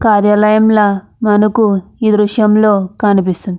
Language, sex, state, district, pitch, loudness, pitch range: Telugu, female, Andhra Pradesh, Anantapur, 210 Hz, -12 LUFS, 200-215 Hz